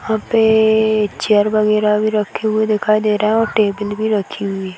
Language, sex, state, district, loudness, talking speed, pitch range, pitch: Hindi, female, Uttar Pradesh, Varanasi, -16 LUFS, 215 wpm, 210-220 Hz, 215 Hz